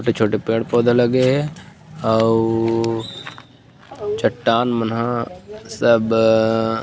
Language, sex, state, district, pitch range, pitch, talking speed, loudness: Chhattisgarhi, male, Chhattisgarh, Rajnandgaon, 115-130 Hz, 115 Hz, 80 wpm, -18 LUFS